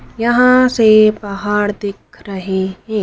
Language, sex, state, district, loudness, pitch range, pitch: Hindi, female, Madhya Pradesh, Dhar, -14 LUFS, 200-225 Hz, 210 Hz